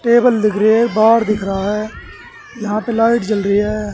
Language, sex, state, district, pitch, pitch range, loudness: Hindi, male, Haryana, Jhajjar, 215 Hz, 210-235 Hz, -15 LUFS